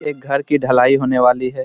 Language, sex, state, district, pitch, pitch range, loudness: Hindi, male, Jharkhand, Jamtara, 130 Hz, 125-140 Hz, -15 LUFS